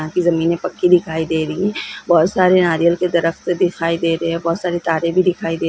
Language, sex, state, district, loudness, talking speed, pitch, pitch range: Hindi, female, Bihar, Gaya, -17 LUFS, 240 wpm, 170 Hz, 165-180 Hz